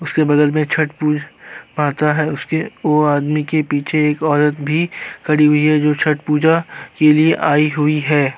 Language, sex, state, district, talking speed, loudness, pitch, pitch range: Hindi, male, Uttar Pradesh, Jyotiba Phule Nagar, 185 wpm, -16 LUFS, 150 Hz, 150-155 Hz